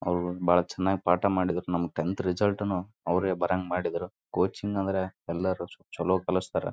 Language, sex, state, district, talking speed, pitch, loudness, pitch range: Kannada, male, Karnataka, Raichur, 80 wpm, 90 Hz, -29 LUFS, 90-95 Hz